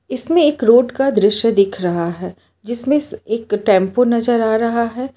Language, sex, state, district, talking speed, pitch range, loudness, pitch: Hindi, female, Gujarat, Valsad, 175 wpm, 205-255 Hz, -16 LUFS, 235 Hz